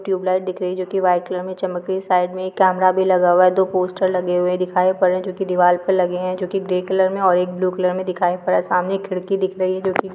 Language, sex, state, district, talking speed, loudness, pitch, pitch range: Hindi, female, Chhattisgarh, Sukma, 330 wpm, -19 LUFS, 185 Hz, 180-190 Hz